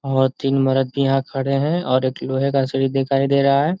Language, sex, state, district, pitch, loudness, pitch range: Hindi, male, Uttar Pradesh, Ghazipur, 135 Hz, -19 LUFS, 135-140 Hz